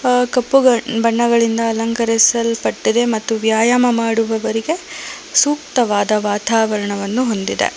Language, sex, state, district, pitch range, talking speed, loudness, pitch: Kannada, female, Karnataka, Bangalore, 225-245 Hz, 75 wpm, -16 LUFS, 230 Hz